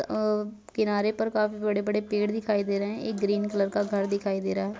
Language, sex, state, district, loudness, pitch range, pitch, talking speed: Hindi, female, Bihar, Samastipur, -28 LUFS, 200-215 Hz, 210 Hz, 235 wpm